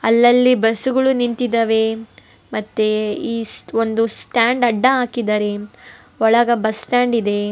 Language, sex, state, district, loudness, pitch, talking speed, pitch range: Kannada, female, Karnataka, Bellary, -17 LUFS, 230 Hz, 105 wpm, 220-245 Hz